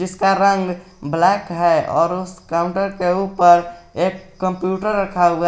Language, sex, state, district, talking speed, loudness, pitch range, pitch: Hindi, male, Jharkhand, Garhwa, 140 wpm, -18 LUFS, 175-190 Hz, 180 Hz